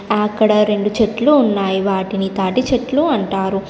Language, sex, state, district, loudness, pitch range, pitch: Telugu, female, Telangana, Komaram Bheem, -16 LUFS, 195-240 Hz, 210 Hz